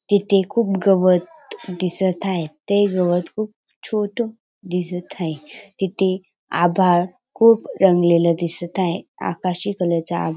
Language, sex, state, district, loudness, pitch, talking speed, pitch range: Marathi, female, Maharashtra, Dhule, -20 LUFS, 185 Hz, 125 wpm, 175-205 Hz